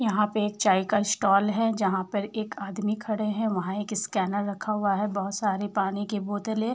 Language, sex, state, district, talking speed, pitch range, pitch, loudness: Hindi, female, Uttar Pradesh, Varanasi, 220 wpm, 200-215 Hz, 205 Hz, -27 LUFS